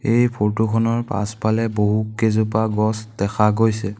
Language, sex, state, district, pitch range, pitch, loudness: Assamese, male, Assam, Sonitpur, 105-115 Hz, 110 Hz, -20 LUFS